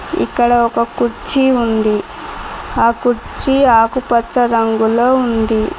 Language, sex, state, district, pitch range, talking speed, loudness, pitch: Telugu, female, Telangana, Mahabubabad, 225-245 Hz, 95 wpm, -14 LUFS, 235 Hz